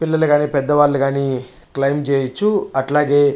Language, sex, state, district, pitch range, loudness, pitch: Telugu, male, Andhra Pradesh, Chittoor, 135-150 Hz, -17 LUFS, 145 Hz